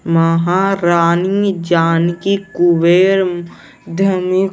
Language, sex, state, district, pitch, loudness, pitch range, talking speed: Hindi, male, Bihar, West Champaran, 175 Hz, -14 LUFS, 170-190 Hz, 65 wpm